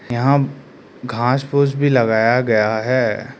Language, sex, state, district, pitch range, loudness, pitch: Hindi, male, Arunachal Pradesh, Lower Dibang Valley, 115-140 Hz, -17 LUFS, 125 Hz